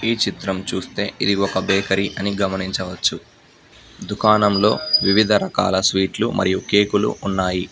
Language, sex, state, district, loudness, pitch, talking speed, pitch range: Telugu, male, Telangana, Hyderabad, -19 LUFS, 100 Hz, 130 wpm, 95-105 Hz